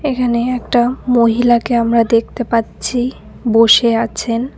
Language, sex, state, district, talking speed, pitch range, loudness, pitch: Bengali, female, West Bengal, Cooch Behar, 105 wpm, 230-245 Hz, -14 LUFS, 235 Hz